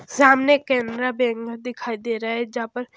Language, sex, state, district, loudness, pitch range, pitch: Hindi, female, Haryana, Jhajjar, -21 LUFS, 230-255 Hz, 245 Hz